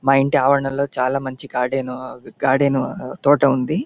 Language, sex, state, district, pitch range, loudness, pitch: Telugu, male, Andhra Pradesh, Anantapur, 130-140 Hz, -19 LUFS, 135 Hz